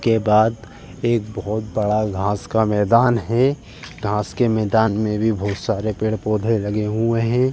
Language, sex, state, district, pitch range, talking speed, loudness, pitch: Hindi, male, Uttar Pradesh, Jalaun, 105-115 Hz, 160 wpm, -20 LUFS, 110 Hz